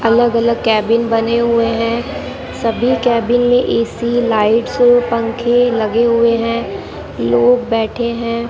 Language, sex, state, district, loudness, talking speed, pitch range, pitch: Hindi, female, Rajasthan, Bikaner, -14 LUFS, 125 wpm, 230-240 Hz, 235 Hz